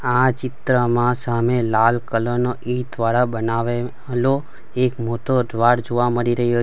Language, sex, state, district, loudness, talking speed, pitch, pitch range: Gujarati, male, Gujarat, Valsad, -20 LUFS, 165 wpm, 120 Hz, 120-125 Hz